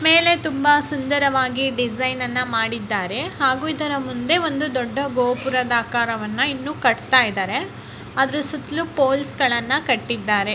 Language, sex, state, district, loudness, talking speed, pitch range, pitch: Kannada, female, Karnataka, Dakshina Kannada, -19 LUFS, 120 wpm, 245-295 Hz, 265 Hz